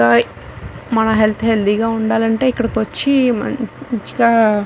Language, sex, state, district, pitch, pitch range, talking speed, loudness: Telugu, female, Telangana, Nalgonda, 225 Hz, 215-235 Hz, 115 wpm, -16 LUFS